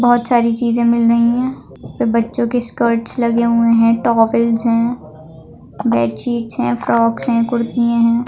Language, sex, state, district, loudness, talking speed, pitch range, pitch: Hindi, female, Maharashtra, Aurangabad, -15 LUFS, 145 wpm, 230-240 Hz, 235 Hz